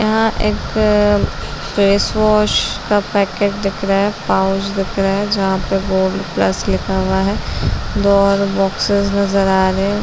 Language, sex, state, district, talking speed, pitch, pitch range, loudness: Hindi, female, Chhattisgarh, Balrampur, 165 wpm, 200 Hz, 195-205 Hz, -16 LUFS